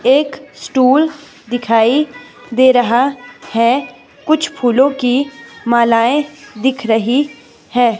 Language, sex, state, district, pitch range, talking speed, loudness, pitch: Hindi, female, Himachal Pradesh, Shimla, 240-280 Hz, 100 wpm, -14 LUFS, 260 Hz